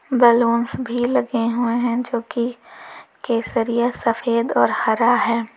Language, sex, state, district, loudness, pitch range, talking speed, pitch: Hindi, female, Uttar Pradesh, Lalitpur, -19 LUFS, 230-245 Hz, 130 wpm, 235 Hz